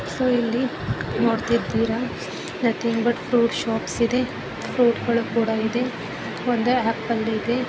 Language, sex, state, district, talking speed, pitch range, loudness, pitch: Kannada, female, Karnataka, Bellary, 125 wpm, 225-245 Hz, -23 LUFS, 235 Hz